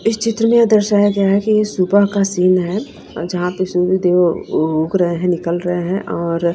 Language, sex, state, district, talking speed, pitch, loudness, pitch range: Hindi, female, Punjab, Kapurthala, 210 wpm, 185 Hz, -16 LUFS, 175-205 Hz